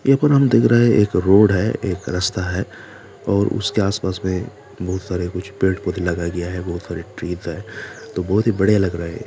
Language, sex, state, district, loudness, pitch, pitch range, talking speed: Hindi, male, Jharkhand, Jamtara, -19 LUFS, 95 Hz, 90-105 Hz, 225 wpm